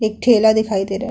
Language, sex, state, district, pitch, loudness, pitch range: Hindi, female, Uttar Pradesh, Hamirpur, 220 Hz, -16 LUFS, 200-220 Hz